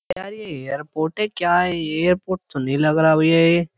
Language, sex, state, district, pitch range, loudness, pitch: Hindi, male, Uttar Pradesh, Jyotiba Phule Nagar, 155-180 Hz, -20 LUFS, 165 Hz